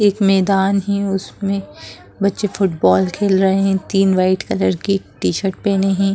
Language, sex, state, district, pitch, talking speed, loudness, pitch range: Hindi, female, Bihar, Gopalganj, 195 Hz, 155 wpm, -17 LUFS, 190-195 Hz